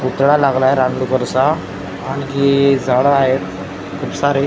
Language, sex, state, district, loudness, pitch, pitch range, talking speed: Marathi, male, Maharashtra, Gondia, -15 LUFS, 130 Hz, 125-140 Hz, 135 wpm